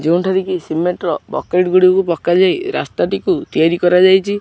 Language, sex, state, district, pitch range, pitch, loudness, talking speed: Odia, male, Odisha, Khordha, 175-190 Hz, 180 Hz, -15 LUFS, 135 wpm